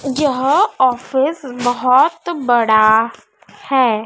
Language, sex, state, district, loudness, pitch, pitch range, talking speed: Hindi, female, Madhya Pradesh, Dhar, -15 LUFS, 260 Hz, 240-275 Hz, 75 wpm